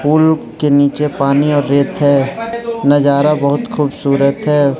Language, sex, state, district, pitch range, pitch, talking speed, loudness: Hindi, male, Arunachal Pradesh, Lower Dibang Valley, 140-150 Hz, 145 Hz, 140 wpm, -13 LUFS